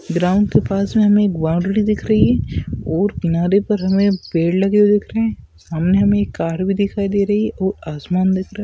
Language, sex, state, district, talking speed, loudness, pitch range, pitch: Hindi, male, Maharashtra, Aurangabad, 220 wpm, -17 LUFS, 180-205 Hz, 195 Hz